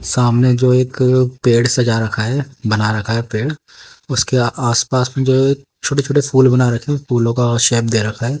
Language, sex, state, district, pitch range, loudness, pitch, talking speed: Hindi, female, Haryana, Jhajjar, 120-135 Hz, -15 LUFS, 125 Hz, 195 wpm